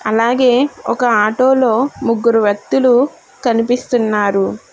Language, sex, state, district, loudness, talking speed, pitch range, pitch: Telugu, female, Telangana, Hyderabad, -14 LUFS, 75 wpm, 220-255 Hz, 240 Hz